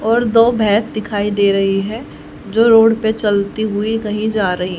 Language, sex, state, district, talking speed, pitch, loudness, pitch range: Hindi, female, Haryana, Charkhi Dadri, 190 wpm, 215 Hz, -15 LUFS, 205-225 Hz